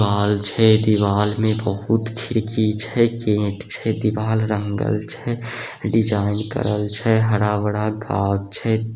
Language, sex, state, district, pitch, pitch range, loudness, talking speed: Maithili, male, Bihar, Samastipur, 110 Hz, 105-110 Hz, -20 LUFS, 120 wpm